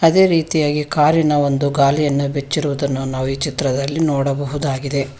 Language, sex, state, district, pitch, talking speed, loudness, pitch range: Kannada, female, Karnataka, Bangalore, 140 Hz, 115 wpm, -18 LUFS, 140-150 Hz